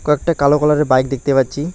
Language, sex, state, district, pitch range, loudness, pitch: Bengali, male, West Bengal, Alipurduar, 135-150 Hz, -15 LUFS, 145 Hz